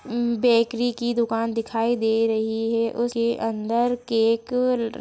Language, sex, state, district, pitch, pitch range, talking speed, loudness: Hindi, female, Chhattisgarh, Jashpur, 230 Hz, 225-240 Hz, 145 wpm, -23 LUFS